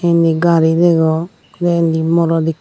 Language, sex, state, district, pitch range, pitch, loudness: Chakma, female, Tripura, Dhalai, 160-170 Hz, 165 Hz, -14 LUFS